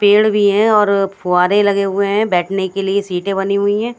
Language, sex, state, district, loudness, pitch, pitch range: Hindi, female, Haryana, Charkhi Dadri, -15 LUFS, 200 Hz, 195-205 Hz